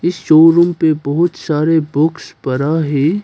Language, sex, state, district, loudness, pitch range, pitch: Hindi, male, Arunachal Pradesh, Papum Pare, -13 LUFS, 150-170 Hz, 160 Hz